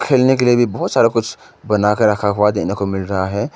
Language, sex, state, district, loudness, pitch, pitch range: Hindi, male, Arunachal Pradesh, Lower Dibang Valley, -16 LUFS, 105 Hz, 100-120 Hz